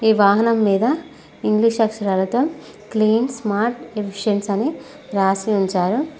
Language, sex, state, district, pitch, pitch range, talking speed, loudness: Telugu, female, Telangana, Mahabubabad, 215 Hz, 200-235 Hz, 105 wpm, -19 LUFS